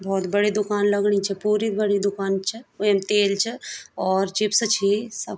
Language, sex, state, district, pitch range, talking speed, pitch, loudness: Garhwali, female, Uttarakhand, Tehri Garhwal, 195-210 Hz, 180 wpm, 205 Hz, -22 LUFS